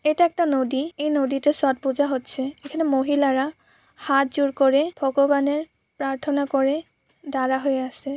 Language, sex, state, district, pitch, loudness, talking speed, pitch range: Bengali, female, West Bengal, Purulia, 280 Hz, -22 LUFS, 130 wpm, 270-295 Hz